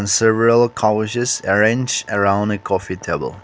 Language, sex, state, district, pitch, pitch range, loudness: English, male, Nagaland, Kohima, 105 Hz, 100-115 Hz, -17 LUFS